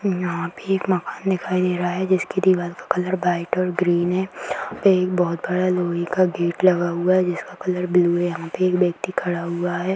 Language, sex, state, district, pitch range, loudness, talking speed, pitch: Hindi, female, Bihar, Purnia, 175-185 Hz, -21 LUFS, 225 wpm, 180 Hz